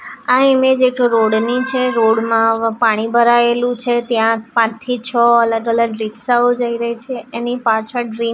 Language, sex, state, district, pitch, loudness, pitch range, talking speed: Gujarati, female, Gujarat, Gandhinagar, 235 Hz, -15 LUFS, 225-245 Hz, 175 wpm